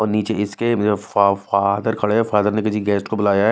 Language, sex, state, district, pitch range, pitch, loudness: Hindi, male, Chhattisgarh, Raipur, 100-110 Hz, 105 Hz, -19 LUFS